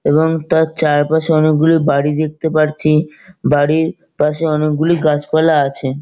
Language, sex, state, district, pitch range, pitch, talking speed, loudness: Bengali, male, West Bengal, North 24 Parganas, 150-160 Hz, 155 Hz, 120 wpm, -15 LUFS